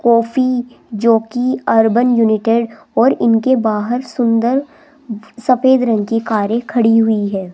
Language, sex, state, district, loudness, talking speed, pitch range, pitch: Hindi, female, Rajasthan, Jaipur, -15 LUFS, 125 wpm, 225-250 Hz, 230 Hz